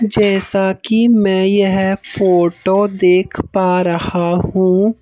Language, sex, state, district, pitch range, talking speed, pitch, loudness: Hindi, male, Madhya Pradesh, Bhopal, 180-200 Hz, 110 wpm, 190 Hz, -14 LUFS